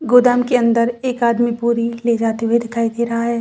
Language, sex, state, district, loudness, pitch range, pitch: Hindi, female, Chhattisgarh, Bilaspur, -17 LUFS, 230-240 Hz, 235 Hz